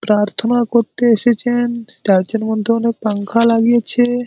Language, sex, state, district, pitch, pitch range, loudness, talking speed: Bengali, male, West Bengal, Malda, 230 Hz, 220-240 Hz, -15 LUFS, 125 wpm